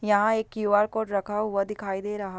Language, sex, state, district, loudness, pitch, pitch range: Hindi, female, Chhattisgarh, Bastar, -26 LUFS, 205 Hz, 200-215 Hz